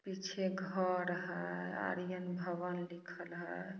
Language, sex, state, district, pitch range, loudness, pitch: Hindi, female, Bihar, Samastipur, 175-190 Hz, -40 LUFS, 180 Hz